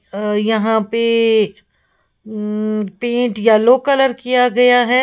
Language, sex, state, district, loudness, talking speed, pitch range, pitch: Hindi, female, Uttar Pradesh, Lalitpur, -15 LUFS, 120 wpm, 215-245 Hz, 225 Hz